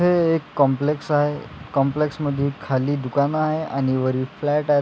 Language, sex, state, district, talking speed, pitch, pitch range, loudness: Marathi, male, Maharashtra, Sindhudurg, 160 wpm, 145 Hz, 135-150 Hz, -22 LUFS